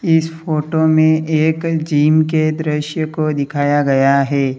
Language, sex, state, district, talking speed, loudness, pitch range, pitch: Hindi, male, Uttar Pradesh, Lalitpur, 145 wpm, -15 LUFS, 145-160 Hz, 155 Hz